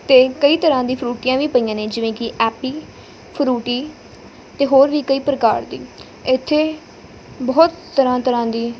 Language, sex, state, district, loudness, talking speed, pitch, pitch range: Punjabi, female, Punjab, Fazilka, -17 LUFS, 155 wpm, 260 Hz, 240-285 Hz